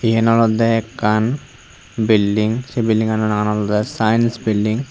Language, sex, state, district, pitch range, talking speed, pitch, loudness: Chakma, male, Tripura, Unakoti, 105-115 Hz, 135 wpm, 110 Hz, -17 LUFS